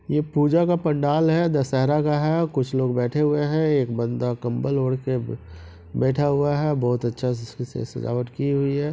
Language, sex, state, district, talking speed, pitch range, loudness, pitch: Hindi, male, Jharkhand, Sahebganj, 200 wpm, 125-150 Hz, -23 LUFS, 135 Hz